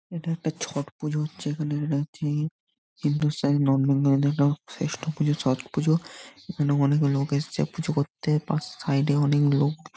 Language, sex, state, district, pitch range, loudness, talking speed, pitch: Bengali, male, West Bengal, Jhargram, 140-155 Hz, -25 LUFS, 155 wpm, 145 Hz